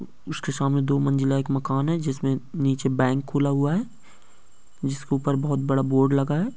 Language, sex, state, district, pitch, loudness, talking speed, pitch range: Hindi, male, Bihar, East Champaran, 140 Hz, -24 LUFS, 190 wpm, 135-145 Hz